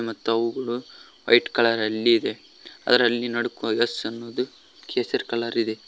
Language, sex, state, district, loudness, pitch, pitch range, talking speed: Kannada, male, Karnataka, Koppal, -23 LUFS, 115 Hz, 115-125 Hz, 120 wpm